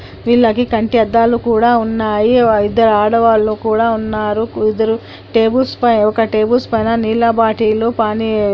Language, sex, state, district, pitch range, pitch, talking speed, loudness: Telugu, female, Andhra Pradesh, Anantapur, 215-230 Hz, 225 Hz, 140 wpm, -14 LUFS